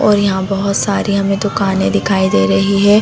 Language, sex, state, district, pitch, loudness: Hindi, female, Chhattisgarh, Bastar, 195 Hz, -14 LUFS